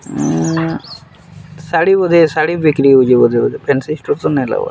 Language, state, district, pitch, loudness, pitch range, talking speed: Sambalpuri, Odisha, Sambalpur, 155 Hz, -13 LUFS, 130-165 Hz, 165 wpm